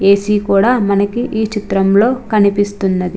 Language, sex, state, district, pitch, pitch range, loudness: Telugu, female, Andhra Pradesh, Chittoor, 200 Hz, 195-215 Hz, -14 LUFS